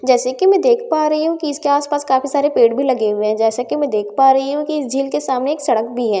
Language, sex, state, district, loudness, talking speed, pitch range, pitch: Hindi, female, Bihar, Katihar, -16 LUFS, 360 wpm, 245-295 Hz, 270 Hz